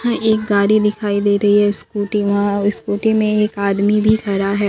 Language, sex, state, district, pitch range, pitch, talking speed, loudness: Hindi, female, Bihar, Katihar, 205-215 Hz, 205 Hz, 205 wpm, -16 LUFS